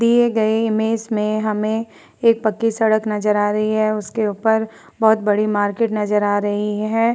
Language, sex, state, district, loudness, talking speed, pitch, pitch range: Hindi, female, Uttar Pradesh, Varanasi, -18 LUFS, 175 wpm, 215 Hz, 210-225 Hz